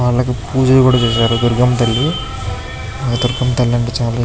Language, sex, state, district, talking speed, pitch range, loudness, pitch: Telugu, male, Andhra Pradesh, Chittoor, 125 wpm, 115-125 Hz, -15 LUFS, 120 Hz